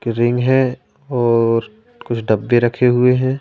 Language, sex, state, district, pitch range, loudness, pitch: Hindi, male, Madhya Pradesh, Katni, 115-130 Hz, -16 LUFS, 120 Hz